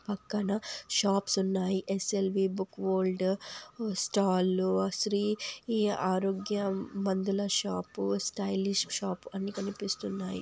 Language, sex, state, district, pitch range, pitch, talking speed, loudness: Telugu, female, Andhra Pradesh, Anantapur, 185-205 Hz, 195 Hz, 100 wpm, -31 LUFS